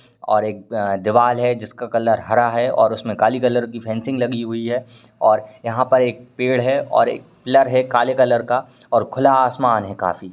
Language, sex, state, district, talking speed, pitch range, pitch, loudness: Hindi, male, Uttar Pradesh, Varanasi, 210 wpm, 110-125 Hz, 120 Hz, -18 LUFS